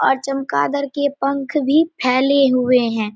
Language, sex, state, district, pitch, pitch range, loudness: Hindi, female, Bihar, Samastipur, 275 Hz, 250-285 Hz, -17 LUFS